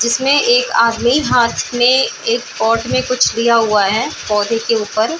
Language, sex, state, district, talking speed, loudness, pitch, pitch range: Hindi, female, Chhattisgarh, Bilaspur, 185 wpm, -14 LUFS, 235 Hz, 225-260 Hz